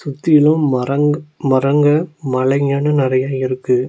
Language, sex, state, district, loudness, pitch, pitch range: Tamil, male, Tamil Nadu, Nilgiris, -15 LUFS, 140 Hz, 130-150 Hz